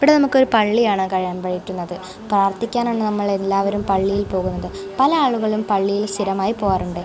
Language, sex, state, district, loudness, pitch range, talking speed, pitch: Malayalam, female, Kerala, Kozhikode, -19 LUFS, 190-220 Hz, 130 wpm, 200 Hz